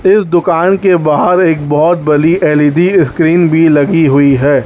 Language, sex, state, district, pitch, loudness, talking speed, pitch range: Hindi, male, Chhattisgarh, Raipur, 165 Hz, -9 LUFS, 165 wpm, 150-175 Hz